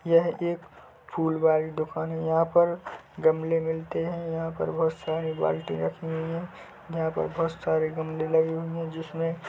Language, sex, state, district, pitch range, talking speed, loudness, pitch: Hindi, male, Chhattisgarh, Bilaspur, 160-165 Hz, 175 wpm, -28 LUFS, 160 Hz